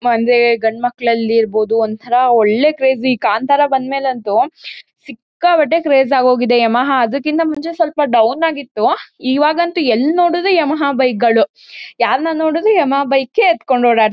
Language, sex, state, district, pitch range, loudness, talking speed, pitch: Kannada, female, Karnataka, Mysore, 235-315 Hz, -14 LUFS, 150 wpm, 265 Hz